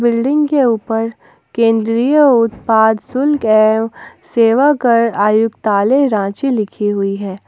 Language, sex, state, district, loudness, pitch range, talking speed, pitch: Hindi, female, Jharkhand, Ranchi, -14 LUFS, 215-255 Hz, 110 wpm, 225 Hz